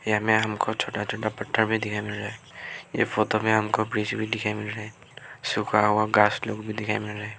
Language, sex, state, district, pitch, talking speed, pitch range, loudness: Hindi, male, Arunachal Pradesh, Lower Dibang Valley, 105 Hz, 225 wpm, 105-110 Hz, -25 LUFS